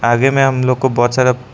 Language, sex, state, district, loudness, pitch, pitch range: Hindi, male, Arunachal Pradesh, Lower Dibang Valley, -14 LUFS, 130 Hz, 120-130 Hz